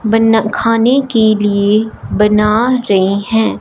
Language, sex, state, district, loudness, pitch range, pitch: Hindi, male, Punjab, Fazilka, -12 LUFS, 210-225 Hz, 220 Hz